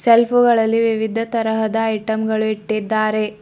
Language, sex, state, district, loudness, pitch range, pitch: Kannada, female, Karnataka, Bidar, -18 LUFS, 215-230 Hz, 220 Hz